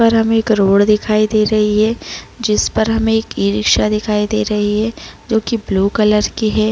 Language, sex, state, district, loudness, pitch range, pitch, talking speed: Hindi, female, Jharkhand, Jamtara, -15 LUFS, 210-220 Hz, 215 Hz, 215 wpm